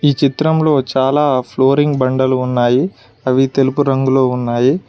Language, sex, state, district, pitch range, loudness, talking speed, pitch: Telugu, male, Telangana, Mahabubabad, 125-140 Hz, -14 LUFS, 120 wpm, 130 Hz